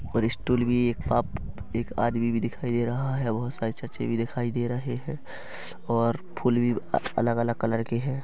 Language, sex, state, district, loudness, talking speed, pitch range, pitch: Hindi, male, Chhattisgarh, Rajnandgaon, -28 LUFS, 195 wpm, 115-125 Hz, 120 Hz